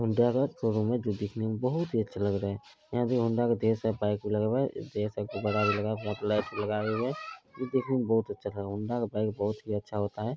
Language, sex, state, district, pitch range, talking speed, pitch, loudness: Maithili, male, Bihar, Araria, 105-120 Hz, 260 wpm, 110 Hz, -30 LUFS